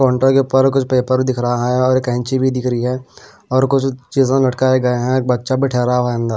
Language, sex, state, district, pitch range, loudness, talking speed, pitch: Hindi, male, Punjab, Pathankot, 125-130 Hz, -16 LUFS, 245 wpm, 130 Hz